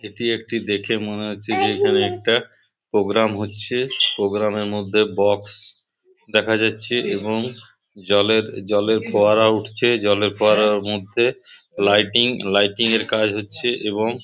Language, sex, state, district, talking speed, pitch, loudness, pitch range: Bengali, male, West Bengal, Purulia, 120 wpm, 105 Hz, -19 LUFS, 105-115 Hz